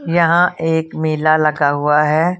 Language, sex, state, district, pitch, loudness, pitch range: Hindi, female, Punjab, Kapurthala, 155 Hz, -15 LUFS, 150-165 Hz